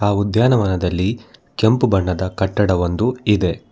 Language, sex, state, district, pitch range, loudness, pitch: Kannada, male, Karnataka, Bangalore, 95-115 Hz, -18 LUFS, 100 Hz